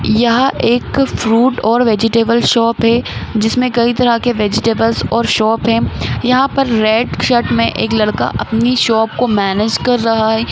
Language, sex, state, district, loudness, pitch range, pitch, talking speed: Hindi, female, Chhattisgarh, Rajnandgaon, -13 LUFS, 220-240 Hz, 230 Hz, 165 wpm